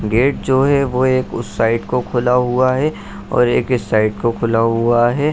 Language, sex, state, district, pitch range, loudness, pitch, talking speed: Hindi, male, Bihar, Saharsa, 115-130 Hz, -16 LUFS, 125 Hz, 215 wpm